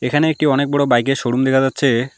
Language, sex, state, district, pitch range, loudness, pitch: Bengali, male, West Bengal, Alipurduar, 125-145 Hz, -16 LUFS, 135 Hz